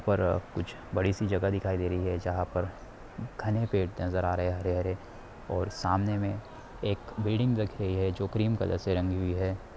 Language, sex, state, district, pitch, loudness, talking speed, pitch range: Hindi, male, Bihar, Darbhanga, 95 Hz, -31 LUFS, 215 wpm, 90-105 Hz